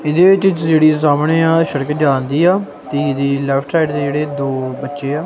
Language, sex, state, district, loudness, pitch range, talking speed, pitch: Punjabi, male, Punjab, Kapurthala, -15 LUFS, 140-160 Hz, 195 wpm, 150 Hz